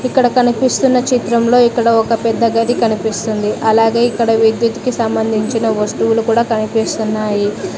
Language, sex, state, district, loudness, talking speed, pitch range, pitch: Telugu, female, Telangana, Mahabubabad, -14 LUFS, 125 wpm, 220-235 Hz, 230 Hz